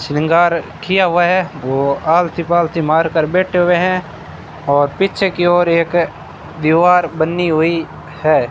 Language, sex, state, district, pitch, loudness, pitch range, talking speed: Hindi, male, Rajasthan, Bikaner, 170 Hz, -15 LUFS, 160-175 Hz, 150 wpm